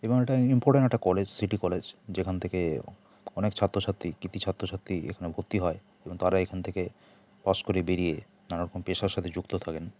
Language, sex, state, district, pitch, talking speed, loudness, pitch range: Bengali, male, West Bengal, Kolkata, 95 Hz, 175 wpm, -29 LUFS, 90-100 Hz